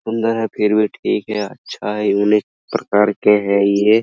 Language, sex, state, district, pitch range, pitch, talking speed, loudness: Hindi, male, Bihar, Araria, 105-110 Hz, 105 Hz, 195 wpm, -17 LUFS